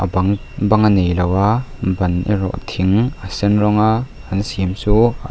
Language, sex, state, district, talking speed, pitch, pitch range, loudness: Mizo, male, Mizoram, Aizawl, 160 wpm, 100 Hz, 95-110 Hz, -17 LUFS